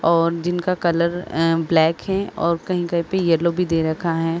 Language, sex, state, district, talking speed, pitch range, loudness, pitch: Hindi, female, Uttar Pradesh, Varanasi, 205 wpm, 165-175 Hz, -20 LUFS, 170 Hz